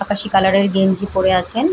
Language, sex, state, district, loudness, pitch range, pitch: Bengali, female, West Bengal, Paschim Medinipur, -15 LUFS, 190-205 Hz, 195 Hz